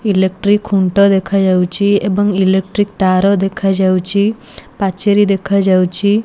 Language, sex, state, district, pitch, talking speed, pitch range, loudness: Odia, female, Odisha, Malkangiri, 195 Hz, 85 wpm, 190-205 Hz, -13 LUFS